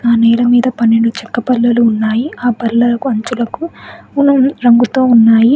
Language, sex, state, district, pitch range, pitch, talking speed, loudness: Telugu, female, Telangana, Hyderabad, 230-250 Hz, 240 Hz, 140 wpm, -12 LUFS